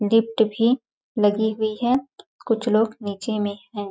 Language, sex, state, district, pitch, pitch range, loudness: Hindi, female, Chhattisgarh, Balrampur, 220 Hz, 210-235 Hz, -22 LUFS